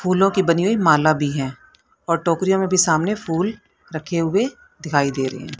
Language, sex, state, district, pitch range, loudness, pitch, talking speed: Hindi, female, Haryana, Rohtak, 155-190 Hz, -19 LUFS, 170 Hz, 205 wpm